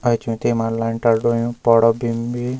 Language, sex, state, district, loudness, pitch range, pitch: Garhwali, male, Uttarakhand, Uttarkashi, -19 LUFS, 115-120 Hz, 115 Hz